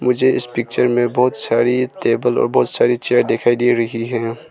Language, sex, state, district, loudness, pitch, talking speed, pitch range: Hindi, male, Arunachal Pradesh, Lower Dibang Valley, -17 LUFS, 120 Hz, 200 wpm, 115-125 Hz